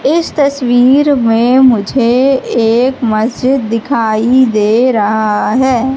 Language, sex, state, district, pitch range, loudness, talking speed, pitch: Hindi, female, Madhya Pradesh, Katni, 225-265 Hz, -11 LUFS, 100 wpm, 245 Hz